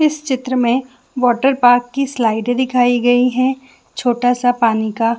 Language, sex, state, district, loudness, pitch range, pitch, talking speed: Hindi, female, Jharkhand, Jamtara, -16 LUFS, 245-260 Hz, 245 Hz, 160 wpm